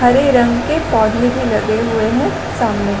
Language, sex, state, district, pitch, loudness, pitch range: Hindi, female, Chhattisgarh, Raigarh, 240 Hz, -15 LUFS, 225-255 Hz